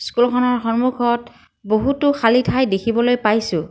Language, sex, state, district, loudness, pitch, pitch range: Assamese, female, Assam, Kamrup Metropolitan, -18 LUFS, 240 Hz, 220-250 Hz